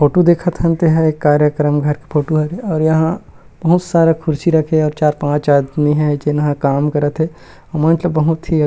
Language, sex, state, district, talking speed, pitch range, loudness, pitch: Chhattisgarhi, male, Chhattisgarh, Rajnandgaon, 200 wpm, 150-165 Hz, -15 LUFS, 155 Hz